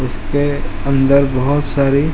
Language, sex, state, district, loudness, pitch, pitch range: Hindi, male, Uttar Pradesh, Ghazipur, -16 LUFS, 140 Hz, 130-145 Hz